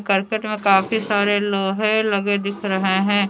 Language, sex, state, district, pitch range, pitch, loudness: Hindi, female, Jharkhand, Deoghar, 195-210 Hz, 200 Hz, -19 LUFS